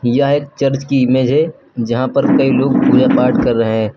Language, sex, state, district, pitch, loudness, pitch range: Hindi, male, Uttar Pradesh, Lucknow, 130 Hz, -14 LUFS, 120-140 Hz